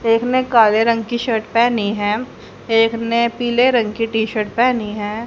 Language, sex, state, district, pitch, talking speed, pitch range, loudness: Hindi, female, Haryana, Rohtak, 230 Hz, 195 wpm, 220-235 Hz, -17 LUFS